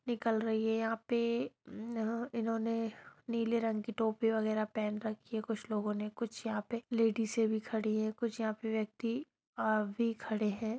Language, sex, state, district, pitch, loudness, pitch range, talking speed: Hindi, female, Bihar, Gaya, 225 Hz, -35 LUFS, 215-230 Hz, 195 wpm